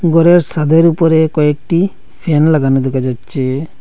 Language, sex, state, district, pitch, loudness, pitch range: Bengali, male, Assam, Hailakandi, 155 Hz, -12 LUFS, 135-165 Hz